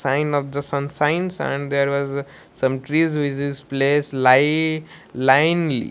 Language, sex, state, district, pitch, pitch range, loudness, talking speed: English, male, Odisha, Malkangiri, 140 Hz, 140-150 Hz, -20 LUFS, 130 wpm